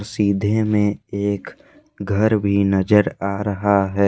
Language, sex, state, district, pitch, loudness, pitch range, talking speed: Hindi, male, Jharkhand, Ranchi, 100 Hz, -19 LUFS, 100-105 Hz, 130 wpm